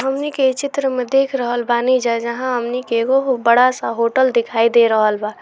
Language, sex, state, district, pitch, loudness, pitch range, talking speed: Hindi, female, Bihar, Gopalganj, 245 Hz, -17 LUFS, 235-260 Hz, 200 wpm